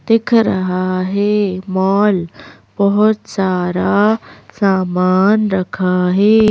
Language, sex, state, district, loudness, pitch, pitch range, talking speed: Hindi, female, Madhya Pradesh, Bhopal, -15 LUFS, 195 Hz, 185-210 Hz, 85 wpm